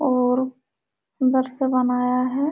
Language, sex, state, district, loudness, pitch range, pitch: Hindi, female, Bihar, Supaul, -22 LUFS, 250-260 Hz, 255 Hz